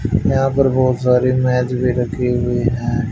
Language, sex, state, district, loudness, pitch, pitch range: Hindi, male, Haryana, Rohtak, -17 LUFS, 125 Hz, 120-130 Hz